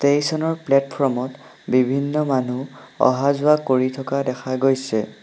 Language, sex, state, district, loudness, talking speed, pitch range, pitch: Assamese, male, Assam, Sonitpur, -20 LUFS, 105 wpm, 130-140 Hz, 135 Hz